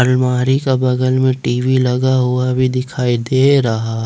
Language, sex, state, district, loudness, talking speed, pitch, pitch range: Hindi, male, Jharkhand, Ranchi, -15 LUFS, 175 wpm, 130 Hz, 125-130 Hz